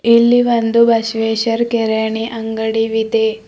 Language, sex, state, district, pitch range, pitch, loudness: Kannada, female, Karnataka, Bidar, 225-235 Hz, 225 Hz, -15 LUFS